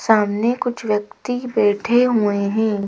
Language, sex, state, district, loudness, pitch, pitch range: Hindi, female, Madhya Pradesh, Bhopal, -19 LUFS, 220 Hz, 205-240 Hz